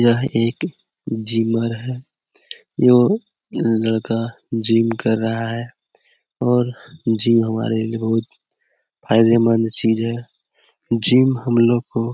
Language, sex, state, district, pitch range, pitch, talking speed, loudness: Hindi, male, Bihar, Jamui, 115-125 Hz, 115 Hz, 110 wpm, -19 LUFS